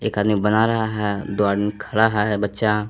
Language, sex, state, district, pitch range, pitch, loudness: Hindi, male, Jharkhand, Palamu, 105-110 Hz, 105 Hz, -20 LUFS